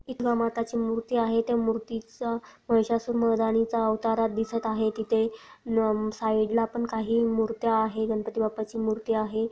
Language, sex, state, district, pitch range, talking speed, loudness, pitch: Marathi, female, Maharashtra, Sindhudurg, 220-230 Hz, 160 wpm, -27 LUFS, 225 Hz